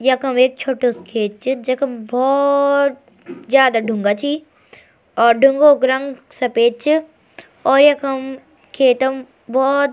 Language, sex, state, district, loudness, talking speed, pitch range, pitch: Garhwali, female, Uttarakhand, Tehri Garhwal, -16 LUFS, 135 wpm, 250-280 Hz, 265 Hz